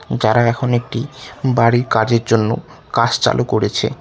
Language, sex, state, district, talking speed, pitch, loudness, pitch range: Bengali, male, West Bengal, Cooch Behar, 135 wpm, 120 Hz, -16 LUFS, 115-125 Hz